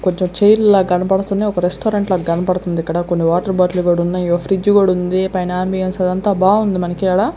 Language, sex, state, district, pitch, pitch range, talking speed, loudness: Telugu, female, Andhra Pradesh, Sri Satya Sai, 185 Hz, 180-195 Hz, 165 wpm, -16 LUFS